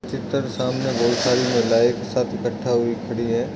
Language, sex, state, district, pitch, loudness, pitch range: Hindi, male, Bihar, Madhepura, 120 Hz, -21 LUFS, 115-125 Hz